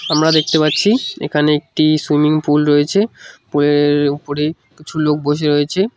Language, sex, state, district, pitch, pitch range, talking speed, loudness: Bengali, male, West Bengal, Cooch Behar, 150 Hz, 145-155 Hz, 140 wpm, -15 LUFS